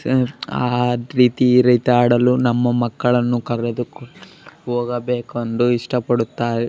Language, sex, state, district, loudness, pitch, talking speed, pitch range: Kannada, male, Karnataka, Bellary, -18 LUFS, 120 Hz, 110 wpm, 120-125 Hz